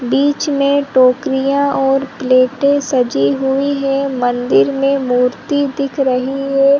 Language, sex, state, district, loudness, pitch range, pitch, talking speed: Hindi, female, Chhattisgarh, Rajnandgaon, -14 LUFS, 255-280 Hz, 275 Hz, 125 wpm